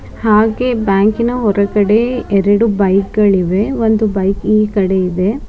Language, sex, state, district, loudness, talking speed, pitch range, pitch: Kannada, female, Karnataka, Bidar, -13 LUFS, 120 wpm, 195-225 Hz, 210 Hz